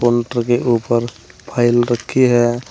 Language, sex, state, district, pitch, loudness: Hindi, male, Uttar Pradesh, Saharanpur, 120 Hz, -16 LUFS